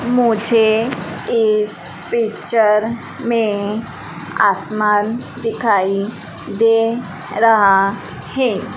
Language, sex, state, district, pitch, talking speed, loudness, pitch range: Hindi, female, Madhya Pradesh, Dhar, 220 Hz, 60 wpm, -17 LUFS, 205-230 Hz